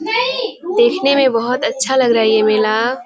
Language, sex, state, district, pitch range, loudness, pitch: Hindi, female, Bihar, Kishanganj, 225-370 Hz, -15 LUFS, 260 Hz